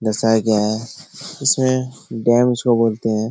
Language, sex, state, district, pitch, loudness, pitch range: Hindi, male, Bihar, Jahanabad, 120 Hz, -18 LUFS, 110-130 Hz